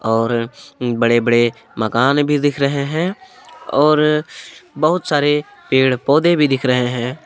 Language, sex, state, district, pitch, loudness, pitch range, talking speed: Hindi, male, Jharkhand, Palamu, 140 Hz, -16 LUFS, 120-150 Hz, 140 wpm